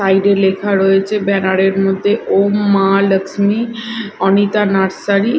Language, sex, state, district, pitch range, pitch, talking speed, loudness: Bengali, female, Odisha, Khordha, 195-205 Hz, 200 Hz, 145 wpm, -14 LUFS